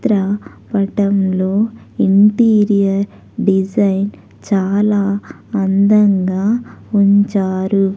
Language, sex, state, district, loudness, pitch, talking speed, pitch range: Telugu, female, Andhra Pradesh, Sri Satya Sai, -15 LUFS, 200 Hz, 55 wpm, 195-210 Hz